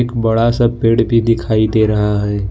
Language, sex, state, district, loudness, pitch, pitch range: Hindi, male, Jharkhand, Ranchi, -14 LUFS, 115 Hz, 110-115 Hz